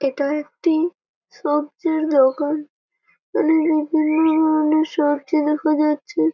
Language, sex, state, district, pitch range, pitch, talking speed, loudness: Bengali, female, West Bengal, Malda, 295-315 Hz, 305 Hz, 95 wpm, -19 LUFS